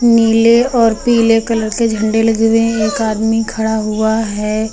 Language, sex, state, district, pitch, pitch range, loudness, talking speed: Hindi, female, Uttar Pradesh, Lucknow, 225 Hz, 220-230 Hz, -13 LUFS, 175 wpm